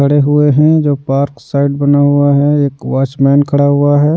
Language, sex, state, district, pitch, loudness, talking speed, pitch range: Hindi, male, Bihar, Patna, 145 Hz, -11 LUFS, 215 wpm, 140-145 Hz